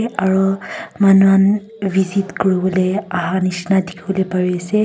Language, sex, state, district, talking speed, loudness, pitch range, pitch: Nagamese, female, Nagaland, Kohima, 100 wpm, -16 LUFS, 185-195 Hz, 190 Hz